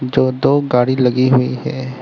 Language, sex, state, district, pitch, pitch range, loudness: Hindi, male, Arunachal Pradesh, Lower Dibang Valley, 130 Hz, 125-130 Hz, -15 LUFS